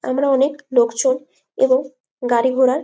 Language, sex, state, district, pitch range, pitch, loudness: Bengali, female, West Bengal, Malda, 255-270 Hz, 260 Hz, -18 LUFS